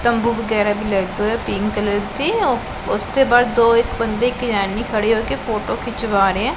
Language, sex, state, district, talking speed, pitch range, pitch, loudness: Punjabi, female, Punjab, Pathankot, 210 wpm, 205-235 Hz, 225 Hz, -18 LUFS